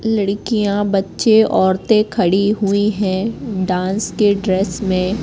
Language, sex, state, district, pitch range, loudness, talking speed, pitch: Hindi, female, Madhya Pradesh, Katni, 190-215 Hz, -16 LUFS, 115 wpm, 200 Hz